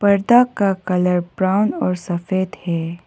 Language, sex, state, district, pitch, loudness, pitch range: Hindi, female, Arunachal Pradesh, Papum Pare, 185 Hz, -18 LUFS, 175-200 Hz